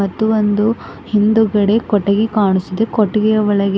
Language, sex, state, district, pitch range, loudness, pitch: Kannada, female, Karnataka, Bidar, 200-220 Hz, -15 LUFS, 210 Hz